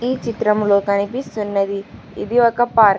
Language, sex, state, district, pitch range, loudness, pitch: Telugu, female, Telangana, Hyderabad, 200-240 Hz, -18 LUFS, 215 Hz